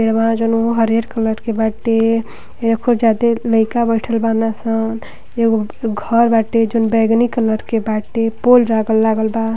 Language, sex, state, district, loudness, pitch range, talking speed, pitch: Bhojpuri, female, Uttar Pradesh, Gorakhpur, -16 LUFS, 225-230 Hz, 115 wpm, 225 Hz